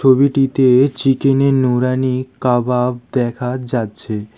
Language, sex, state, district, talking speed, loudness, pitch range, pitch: Bengali, male, West Bengal, Alipurduar, 95 wpm, -16 LUFS, 125-135 Hz, 130 Hz